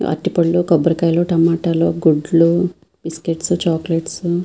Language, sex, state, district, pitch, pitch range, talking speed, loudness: Telugu, female, Andhra Pradesh, Visakhapatnam, 165 Hz, 165-175 Hz, 110 wpm, -16 LUFS